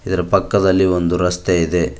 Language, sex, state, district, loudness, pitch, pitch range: Kannada, male, Karnataka, Koppal, -16 LUFS, 90 Hz, 90-95 Hz